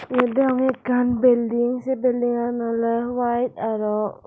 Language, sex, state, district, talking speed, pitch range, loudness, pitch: Chakma, female, Tripura, Dhalai, 140 wpm, 235-250 Hz, -21 LUFS, 245 Hz